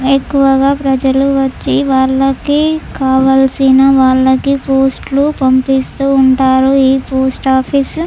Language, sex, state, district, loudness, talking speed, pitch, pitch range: Telugu, female, Andhra Pradesh, Chittoor, -11 LUFS, 95 wpm, 270 Hz, 265-275 Hz